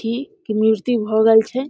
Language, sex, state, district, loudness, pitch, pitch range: Maithili, female, Bihar, Samastipur, -17 LUFS, 225 Hz, 220-255 Hz